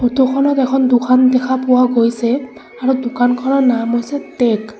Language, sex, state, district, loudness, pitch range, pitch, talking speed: Assamese, female, Assam, Sonitpur, -15 LUFS, 240-265 Hz, 250 Hz, 150 wpm